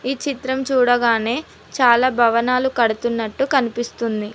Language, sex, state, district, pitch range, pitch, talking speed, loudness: Telugu, female, Telangana, Mahabubabad, 235-260 Hz, 245 Hz, 95 wpm, -18 LUFS